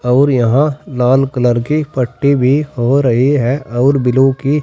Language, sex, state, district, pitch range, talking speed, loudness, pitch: Hindi, male, Uttar Pradesh, Saharanpur, 125-140 Hz, 170 wpm, -13 LUFS, 135 Hz